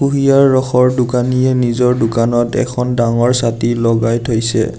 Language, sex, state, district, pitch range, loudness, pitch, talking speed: Assamese, male, Assam, Sonitpur, 115-125 Hz, -14 LUFS, 125 Hz, 125 wpm